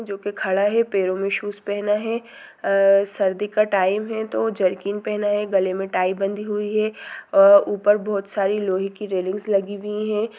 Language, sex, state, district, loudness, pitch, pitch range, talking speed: Hindi, female, Bihar, Sitamarhi, -21 LUFS, 205 Hz, 195-215 Hz, 195 wpm